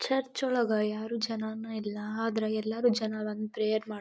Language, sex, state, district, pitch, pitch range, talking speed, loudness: Kannada, female, Karnataka, Dharwad, 220 Hz, 215-225 Hz, 180 wpm, -31 LUFS